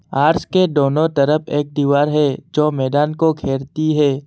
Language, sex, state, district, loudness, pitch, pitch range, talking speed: Hindi, male, Assam, Kamrup Metropolitan, -17 LUFS, 145 Hz, 140-155 Hz, 170 wpm